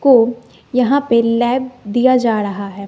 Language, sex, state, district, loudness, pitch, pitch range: Hindi, female, Bihar, West Champaran, -15 LUFS, 240 Hz, 225-255 Hz